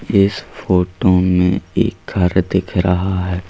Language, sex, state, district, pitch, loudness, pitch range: Hindi, male, Madhya Pradesh, Bhopal, 90 Hz, -16 LUFS, 90-95 Hz